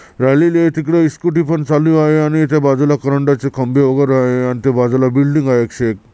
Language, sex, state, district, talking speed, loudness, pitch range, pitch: Marathi, male, Maharashtra, Chandrapur, 195 wpm, -14 LUFS, 130-155 Hz, 140 Hz